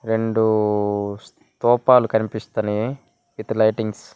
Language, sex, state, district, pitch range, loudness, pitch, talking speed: Telugu, male, Andhra Pradesh, Srikakulam, 105-110 Hz, -20 LUFS, 110 Hz, 70 wpm